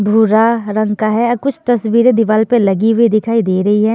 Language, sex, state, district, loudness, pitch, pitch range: Hindi, female, Punjab, Fazilka, -13 LUFS, 220 Hz, 215-235 Hz